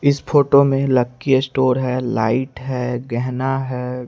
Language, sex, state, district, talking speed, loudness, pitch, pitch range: Hindi, male, Chandigarh, Chandigarh, 135 wpm, -18 LUFS, 130 Hz, 125-135 Hz